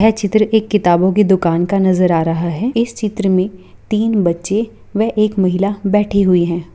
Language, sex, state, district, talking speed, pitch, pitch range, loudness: Hindi, female, Bihar, Purnia, 195 wpm, 200 Hz, 180-215 Hz, -15 LUFS